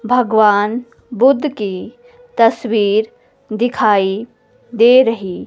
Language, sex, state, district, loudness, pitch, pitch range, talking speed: Hindi, female, Himachal Pradesh, Shimla, -14 LUFS, 230 Hz, 215-250 Hz, 75 wpm